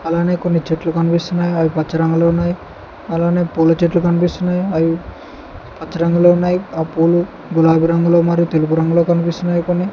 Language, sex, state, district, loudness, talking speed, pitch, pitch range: Telugu, male, Telangana, Hyderabad, -15 LUFS, 150 wpm, 170 Hz, 165-175 Hz